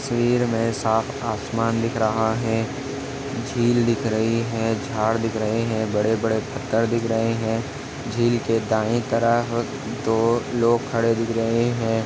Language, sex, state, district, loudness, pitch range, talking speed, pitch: Hindi, male, Chhattisgarh, Balrampur, -22 LUFS, 110-120 Hz, 155 wpm, 115 Hz